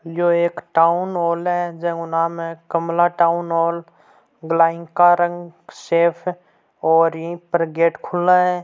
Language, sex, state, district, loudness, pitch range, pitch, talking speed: Hindi, male, Rajasthan, Churu, -19 LUFS, 165-175 Hz, 170 Hz, 165 wpm